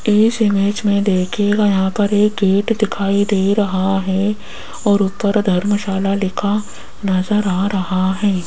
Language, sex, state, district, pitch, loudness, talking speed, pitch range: Hindi, female, Rajasthan, Jaipur, 200 Hz, -17 LUFS, 140 wpm, 195-210 Hz